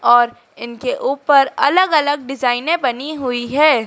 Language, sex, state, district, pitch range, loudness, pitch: Hindi, female, Madhya Pradesh, Dhar, 245-305 Hz, -16 LUFS, 270 Hz